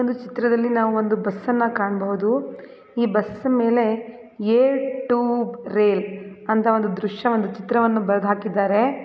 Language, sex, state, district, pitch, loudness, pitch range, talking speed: Kannada, female, Karnataka, Belgaum, 225 Hz, -21 LUFS, 210-240 Hz, 120 wpm